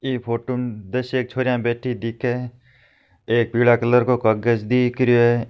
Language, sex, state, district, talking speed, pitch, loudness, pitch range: Marwari, male, Rajasthan, Nagaur, 175 wpm, 120 Hz, -20 LUFS, 120-125 Hz